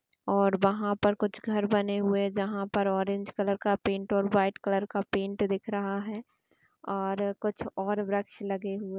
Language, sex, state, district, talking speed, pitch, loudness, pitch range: Hindi, female, Bihar, East Champaran, 195 wpm, 200 Hz, -30 LUFS, 195-205 Hz